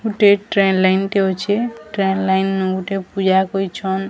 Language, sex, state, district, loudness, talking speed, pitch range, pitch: Odia, female, Odisha, Sambalpur, -17 LUFS, 175 wpm, 190-200 Hz, 195 Hz